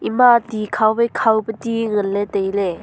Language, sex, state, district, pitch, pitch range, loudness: Wancho, female, Arunachal Pradesh, Longding, 220 Hz, 205-230 Hz, -18 LUFS